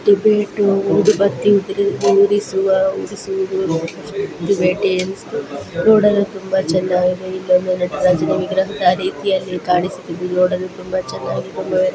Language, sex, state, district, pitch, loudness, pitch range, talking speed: Kannada, female, Karnataka, Belgaum, 190 Hz, -17 LUFS, 185-210 Hz, 80 wpm